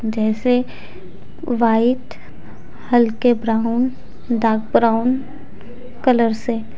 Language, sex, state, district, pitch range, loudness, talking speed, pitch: Hindi, female, Jharkhand, Deoghar, 225-250 Hz, -18 LUFS, 70 wpm, 235 Hz